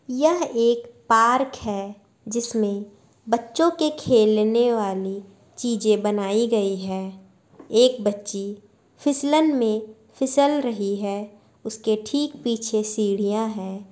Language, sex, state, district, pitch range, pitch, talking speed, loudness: Hindi, female, Bihar, Madhepura, 205-245 Hz, 220 Hz, 110 wpm, -22 LUFS